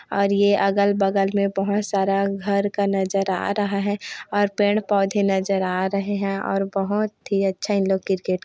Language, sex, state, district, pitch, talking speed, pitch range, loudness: Hindi, female, Chhattisgarh, Korba, 200 Hz, 185 wpm, 195-205 Hz, -22 LUFS